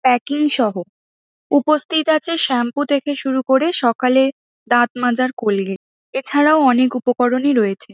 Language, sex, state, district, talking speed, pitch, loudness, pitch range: Bengali, female, West Bengal, Jhargram, 115 wpm, 260 Hz, -17 LUFS, 245-290 Hz